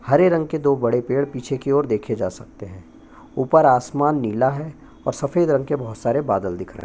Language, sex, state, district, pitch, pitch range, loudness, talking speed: Hindi, male, Chhattisgarh, Bastar, 140 Hz, 120-145 Hz, -20 LUFS, 235 wpm